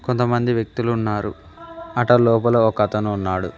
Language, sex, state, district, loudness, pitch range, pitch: Telugu, male, Telangana, Mahabubabad, -19 LUFS, 105-120 Hz, 115 Hz